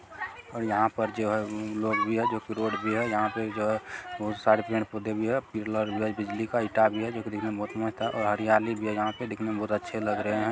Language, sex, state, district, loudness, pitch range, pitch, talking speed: Hindi, male, Bihar, Jamui, -29 LUFS, 105-110 Hz, 110 Hz, 290 wpm